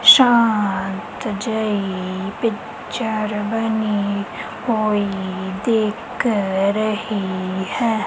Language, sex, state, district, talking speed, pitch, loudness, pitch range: Punjabi, female, Punjab, Kapurthala, 60 wpm, 210 Hz, -20 LUFS, 195-220 Hz